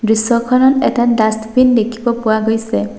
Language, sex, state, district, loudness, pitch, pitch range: Assamese, female, Assam, Sonitpur, -14 LUFS, 225 Hz, 220-240 Hz